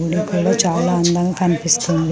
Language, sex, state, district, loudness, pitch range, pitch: Telugu, female, Andhra Pradesh, Sri Satya Sai, -17 LUFS, 165-180 Hz, 175 Hz